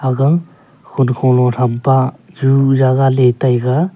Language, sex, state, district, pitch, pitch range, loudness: Wancho, male, Arunachal Pradesh, Longding, 130 Hz, 125-135 Hz, -14 LUFS